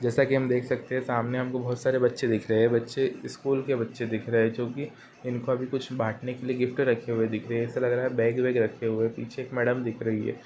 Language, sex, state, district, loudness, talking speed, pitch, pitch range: Hindi, male, Uttar Pradesh, Ghazipur, -27 LUFS, 285 wpm, 125 Hz, 115-130 Hz